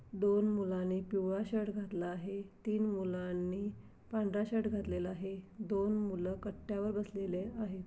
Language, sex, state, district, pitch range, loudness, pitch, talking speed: Marathi, female, Maharashtra, Aurangabad, 185-210 Hz, -37 LUFS, 200 Hz, 130 wpm